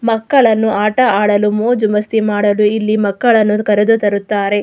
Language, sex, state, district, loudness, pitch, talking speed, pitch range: Kannada, female, Karnataka, Mysore, -13 LUFS, 210 Hz, 130 wpm, 205-220 Hz